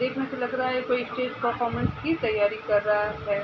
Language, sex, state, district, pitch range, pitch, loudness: Hindi, female, Uttar Pradesh, Gorakhpur, 210-255 Hz, 240 Hz, -26 LUFS